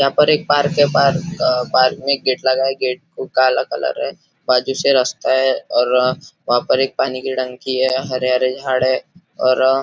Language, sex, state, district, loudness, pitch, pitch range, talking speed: Hindi, male, Maharashtra, Nagpur, -17 LUFS, 130 Hz, 130-140 Hz, 215 wpm